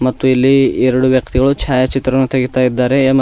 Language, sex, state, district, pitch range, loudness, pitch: Kannada, male, Karnataka, Bidar, 130-135 Hz, -13 LUFS, 130 Hz